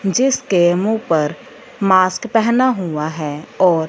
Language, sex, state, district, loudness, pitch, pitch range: Hindi, female, Punjab, Fazilka, -16 LUFS, 185 Hz, 160-225 Hz